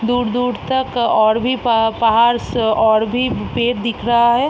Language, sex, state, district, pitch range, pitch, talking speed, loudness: Hindi, female, Bihar, East Champaran, 225-245 Hz, 235 Hz, 160 wpm, -16 LUFS